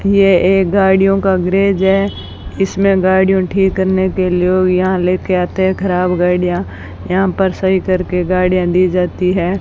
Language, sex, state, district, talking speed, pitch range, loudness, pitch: Hindi, female, Rajasthan, Bikaner, 175 wpm, 180-190 Hz, -14 LUFS, 185 Hz